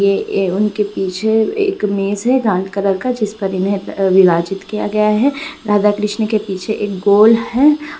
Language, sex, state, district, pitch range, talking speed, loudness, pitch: Hindi, female, Bihar, Bhagalpur, 195-220 Hz, 165 wpm, -15 LUFS, 210 Hz